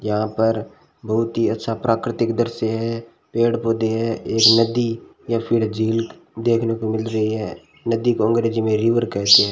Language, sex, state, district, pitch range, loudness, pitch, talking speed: Hindi, male, Rajasthan, Bikaner, 110-115 Hz, -20 LUFS, 115 Hz, 175 wpm